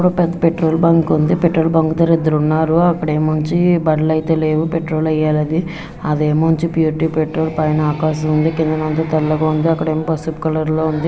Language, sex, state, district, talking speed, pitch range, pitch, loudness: Telugu, female, Andhra Pradesh, Visakhapatnam, 150 wpm, 155-165 Hz, 160 Hz, -16 LUFS